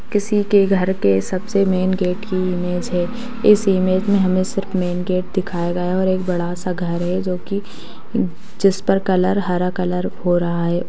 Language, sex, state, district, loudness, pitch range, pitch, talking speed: Hindi, female, Bihar, Saharsa, -19 LUFS, 180-195 Hz, 185 Hz, 195 wpm